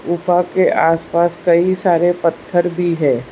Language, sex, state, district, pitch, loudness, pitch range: Hindi, female, Gujarat, Valsad, 175 Hz, -15 LUFS, 170-175 Hz